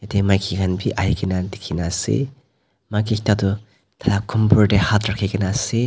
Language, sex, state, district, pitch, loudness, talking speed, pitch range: Nagamese, male, Nagaland, Dimapur, 100 Hz, -20 LUFS, 165 wpm, 95-110 Hz